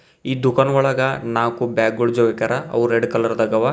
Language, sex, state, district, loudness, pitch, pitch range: Kannada, male, Karnataka, Bidar, -19 LUFS, 115 Hz, 115-130 Hz